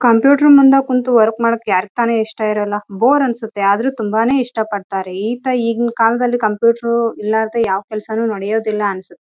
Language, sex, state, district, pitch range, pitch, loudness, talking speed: Kannada, female, Karnataka, Raichur, 210-240 Hz, 225 Hz, -15 LUFS, 85 wpm